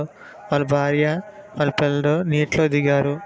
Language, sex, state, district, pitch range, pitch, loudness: Telugu, male, Andhra Pradesh, Srikakulam, 145-155 Hz, 150 Hz, -20 LUFS